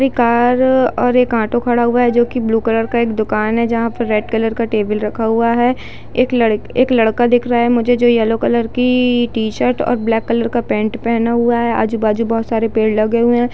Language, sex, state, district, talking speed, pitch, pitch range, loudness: Hindi, female, Bihar, Darbhanga, 250 wpm, 235 Hz, 225-240 Hz, -15 LUFS